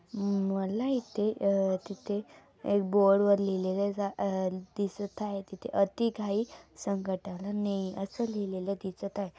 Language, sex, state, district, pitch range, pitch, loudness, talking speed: Marathi, female, Maharashtra, Dhule, 195-205 Hz, 200 Hz, -31 LUFS, 135 wpm